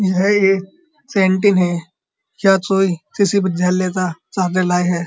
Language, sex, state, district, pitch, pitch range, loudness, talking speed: Hindi, male, Uttar Pradesh, Muzaffarnagar, 185 Hz, 180-195 Hz, -17 LUFS, 70 wpm